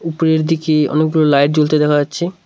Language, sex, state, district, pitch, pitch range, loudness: Bengali, male, West Bengal, Cooch Behar, 155 Hz, 150-160 Hz, -14 LUFS